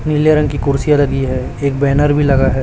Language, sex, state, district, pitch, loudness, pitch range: Hindi, male, Chhattisgarh, Raipur, 140 Hz, -14 LUFS, 135-145 Hz